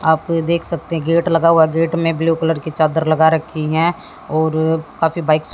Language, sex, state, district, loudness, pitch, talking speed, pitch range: Hindi, female, Haryana, Jhajjar, -16 LUFS, 160 Hz, 225 wpm, 160-165 Hz